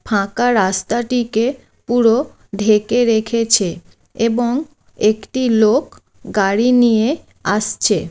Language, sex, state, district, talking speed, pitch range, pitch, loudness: Bengali, female, West Bengal, Jalpaiguri, 80 wpm, 215-245 Hz, 230 Hz, -16 LUFS